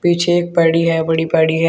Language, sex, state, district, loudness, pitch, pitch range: Hindi, male, Uttar Pradesh, Shamli, -15 LUFS, 165 Hz, 160-175 Hz